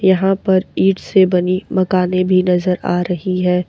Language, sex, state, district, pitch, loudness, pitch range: Hindi, female, Uttar Pradesh, Lalitpur, 185 Hz, -16 LUFS, 180-190 Hz